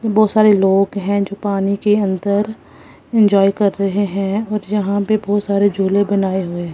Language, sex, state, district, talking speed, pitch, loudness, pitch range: Hindi, female, Punjab, Kapurthala, 185 wpm, 200 Hz, -16 LUFS, 195-210 Hz